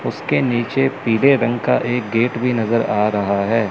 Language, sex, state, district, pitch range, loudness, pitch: Hindi, male, Chandigarh, Chandigarh, 110-125 Hz, -18 LUFS, 115 Hz